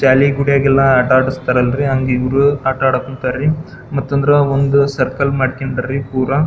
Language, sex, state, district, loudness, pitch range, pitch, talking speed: Kannada, male, Karnataka, Belgaum, -15 LUFS, 130-140 Hz, 135 Hz, 140 wpm